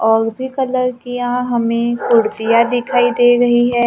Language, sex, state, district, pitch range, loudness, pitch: Hindi, female, Maharashtra, Gondia, 235-245 Hz, -15 LUFS, 240 Hz